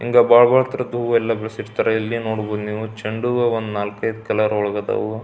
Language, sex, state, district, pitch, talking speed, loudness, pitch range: Kannada, male, Karnataka, Belgaum, 110 Hz, 170 wpm, -19 LUFS, 110-120 Hz